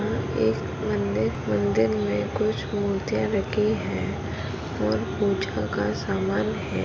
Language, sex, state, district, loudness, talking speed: Marathi, female, Maharashtra, Sindhudurg, -26 LUFS, 115 wpm